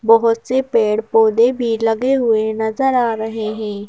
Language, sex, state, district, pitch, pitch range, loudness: Hindi, female, Madhya Pradesh, Bhopal, 225 Hz, 220-240 Hz, -16 LUFS